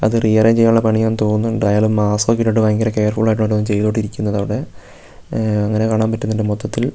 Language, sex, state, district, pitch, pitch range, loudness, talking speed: Malayalam, male, Kerala, Wayanad, 110 Hz, 105-110 Hz, -16 LUFS, 180 wpm